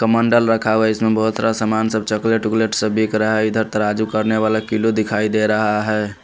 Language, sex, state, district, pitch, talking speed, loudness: Hindi, male, Haryana, Rohtak, 110 Hz, 230 wpm, -17 LUFS